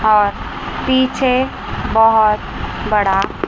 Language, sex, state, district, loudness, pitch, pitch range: Hindi, female, Chandigarh, Chandigarh, -16 LUFS, 220 Hz, 210-255 Hz